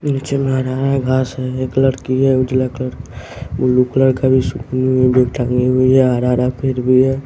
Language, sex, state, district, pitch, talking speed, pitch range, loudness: Hindi, male, Bihar, West Champaran, 130 Hz, 180 wpm, 125-130 Hz, -15 LUFS